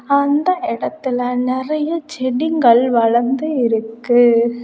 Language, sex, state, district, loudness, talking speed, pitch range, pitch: Tamil, female, Tamil Nadu, Kanyakumari, -16 LUFS, 80 wpm, 240-295 Hz, 255 Hz